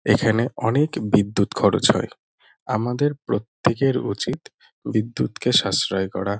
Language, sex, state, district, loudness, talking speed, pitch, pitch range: Bengali, male, West Bengal, North 24 Parganas, -21 LUFS, 105 wpm, 110 Hz, 100-135 Hz